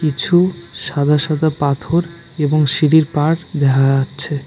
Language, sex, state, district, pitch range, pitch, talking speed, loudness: Bengali, male, West Bengal, Alipurduar, 145-165 Hz, 150 Hz, 120 wpm, -16 LUFS